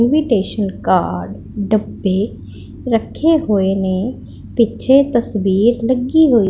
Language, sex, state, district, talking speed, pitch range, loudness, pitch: Punjabi, female, Punjab, Pathankot, 100 wpm, 195-250 Hz, -16 LUFS, 220 Hz